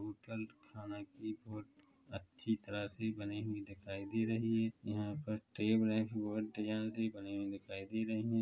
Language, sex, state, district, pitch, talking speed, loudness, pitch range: Hindi, male, Chhattisgarh, Korba, 110 Hz, 165 wpm, -40 LUFS, 105-110 Hz